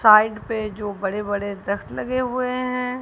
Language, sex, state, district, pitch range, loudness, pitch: Hindi, female, Punjab, Kapurthala, 205-250 Hz, -23 LUFS, 215 Hz